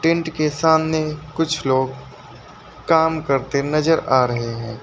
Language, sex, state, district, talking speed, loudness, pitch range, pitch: Hindi, male, Uttar Pradesh, Lucknow, 135 wpm, -19 LUFS, 130-160 Hz, 155 Hz